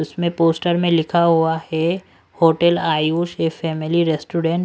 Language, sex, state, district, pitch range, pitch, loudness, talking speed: Hindi, male, Odisha, Sambalpur, 160-170 Hz, 165 Hz, -18 LUFS, 140 wpm